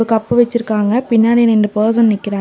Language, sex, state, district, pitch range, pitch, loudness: Tamil, female, Tamil Nadu, Nilgiris, 215-235 Hz, 225 Hz, -13 LUFS